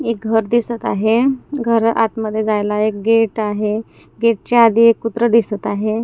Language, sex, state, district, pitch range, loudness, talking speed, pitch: Marathi, female, Maharashtra, Gondia, 215-230 Hz, -16 LUFS, 160 wpm, 225 Hz